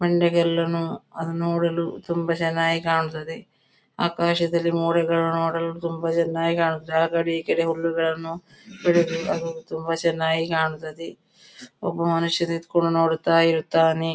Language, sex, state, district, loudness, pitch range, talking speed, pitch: Kannada, female, Karnataka, Dakshina Kannada, -23 LUFS, 165-170 Hz, 120 wpm, 165 Hz